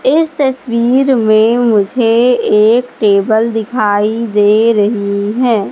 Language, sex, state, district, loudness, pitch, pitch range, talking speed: Hindi, female, Madhya Pradesh, Katni, -11 LUFS, 225 Hz, 210-245 Hz, 105 wpm